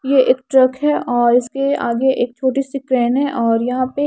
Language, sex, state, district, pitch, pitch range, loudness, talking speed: Hindi, female, Haryana, Charkhi Dadri, 260 Hz, 245-275 Hz, -16 LUFS, 220 wpm